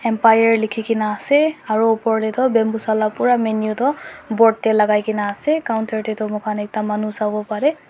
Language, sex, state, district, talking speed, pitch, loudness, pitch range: Nagamese, female, Nagaland, Dimapur, 175 wpm, 220 Hz, -18 LUFS, 215-230 Hz